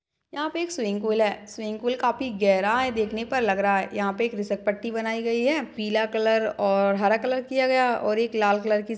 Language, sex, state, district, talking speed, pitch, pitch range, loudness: Hindi, female, Chhattisgarh, Jashpur, 240 wpm, 220 Hz, 210-245 Hz, -24 LUFS